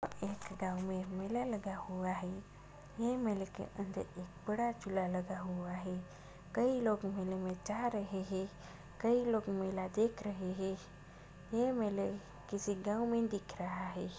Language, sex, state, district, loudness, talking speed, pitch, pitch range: Hindi, female, Bihar, Lakhisarai, -39 LUFS, 150 wpm, 190 Hz, 180-210 Hz